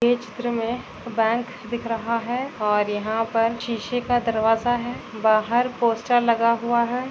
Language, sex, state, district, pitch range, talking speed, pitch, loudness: Hindi, female, Maharashtra, Dhule, 225-245 Hz, 160 wpm, 235 Hz, -23 LUFS